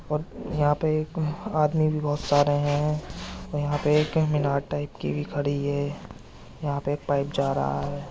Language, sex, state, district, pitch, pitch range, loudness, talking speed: Hindi, male, Uttar Pradesh, Jyotiba Phule Nagar, 145 Hz, 145-155 Hz, -26 LUFS, 200 wpm